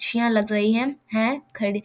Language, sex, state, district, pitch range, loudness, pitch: Maithili, female, Bihar, Samastipur, 210-255 Hz, -23 LUFS, 225 Hz